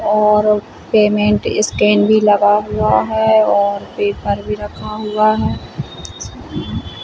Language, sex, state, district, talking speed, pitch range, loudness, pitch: Hindi, female, Chhattisgarh, Bilaspur, 120 wpm, 200-215 Hz, -15 LUFS, 210 Hz